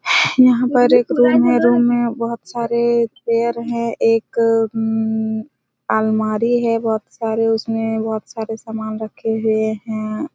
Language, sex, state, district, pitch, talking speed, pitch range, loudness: Hindi, female, Chhattisgarh, Raigarh, 225 Hz, 140 wpm, 220-235 Hz, -17 LUFS